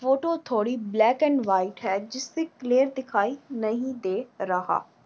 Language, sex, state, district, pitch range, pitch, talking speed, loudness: Hindi, female, Uttar Pradesh, Varanasi, 205-270 Hz, 245 Hz, 140 wpm, -26 LUFS